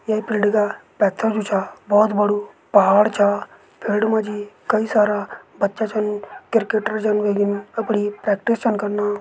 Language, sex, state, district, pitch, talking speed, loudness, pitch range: Garhwali, male, Uttarakhand, Uttarkashi, 210 Hz, 150 wpm, -20 LUFS, 205-220 Hz